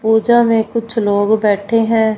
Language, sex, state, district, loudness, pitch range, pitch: Hindi, female, Punjab, Fazilka, -14 LUFS, 215-230 Hz, 220 Hz